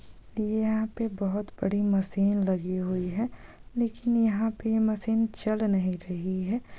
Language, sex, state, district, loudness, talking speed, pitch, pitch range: Hindi, female, Jharkhand, Sahebganj, -28 LUFS, 150 wpm, 210 Hz, 190-225 Hz